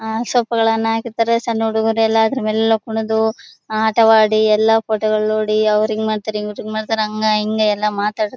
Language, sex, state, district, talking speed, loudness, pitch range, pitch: Kannada, female, Karnataka, Bellary, 150 wpm, -17 LUFS, 215-225 Hz, 220 Hz